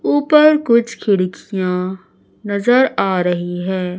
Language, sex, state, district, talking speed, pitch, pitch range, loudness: Hindi, female, Chhattisgarh, Raipur, 105 wpm, 190 Hz, 185-235 Hz, -16 LUFS